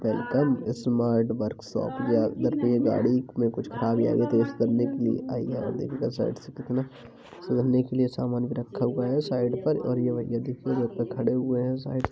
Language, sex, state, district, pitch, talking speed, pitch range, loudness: Hindi, male, Uttar Pradesh, Jalaun, 125 Hz, 195 wpm, 120-130 Hz, -27 LUFS